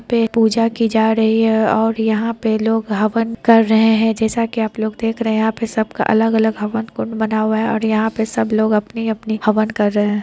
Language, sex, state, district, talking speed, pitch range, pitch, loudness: Hindi, female, Bihar, Lakhisarai, 225 wpm, 220-225 Hz, 220 Hz, -17 LUFS